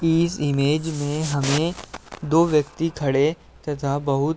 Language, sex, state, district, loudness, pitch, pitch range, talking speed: Hindi, male, Uttar Pradesh, Deoria, -22 LUFS, 150 Hz, 145-165 Hz, 135 wpm